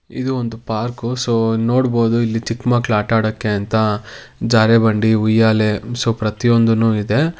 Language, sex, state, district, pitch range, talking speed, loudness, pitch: Kannada, male, Karnataka, Mysore, 110-120 Hz, 155 wpm, -17 LUFS, 115 Hz